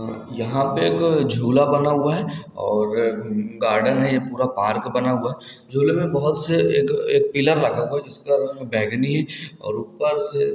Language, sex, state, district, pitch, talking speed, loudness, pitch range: Hindi, male, Chhattisgarh, Balrampur, 140 Hz, 165 wpm, -21 LUFS, 125-150 Hz